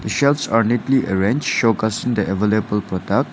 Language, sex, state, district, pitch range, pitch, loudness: English, male, Nagaland, Dimapur, 105-125 Hz, 110 Hz, -19 LUFS